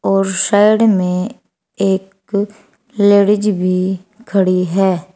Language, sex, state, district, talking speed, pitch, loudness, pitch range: Hindi, female, Uttar Pradesh, Saharanpur, 95 wpm, 195 Hz, -15 LUFS, 185-210 Hz